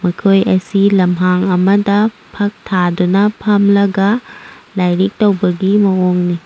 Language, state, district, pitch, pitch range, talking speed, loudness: Manipuri, Manipur, Imphal West, 195 Hz, 180-205 Hz, 95 wpm, -13 LUFS